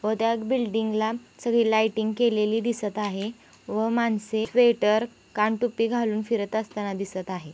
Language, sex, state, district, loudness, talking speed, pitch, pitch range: Hindi, female, Maharashtra, Sindhudurg, -25 LUFS, 150 wpm, 220 Hz, 210-230 Hz